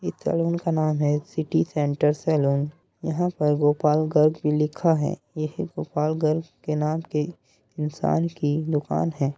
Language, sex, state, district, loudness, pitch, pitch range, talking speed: Hindi, male, Uttar Pradesh, Muzaffarnagar, -24 LUFS, 155 Hz, 150-165 Hz, 155 wpm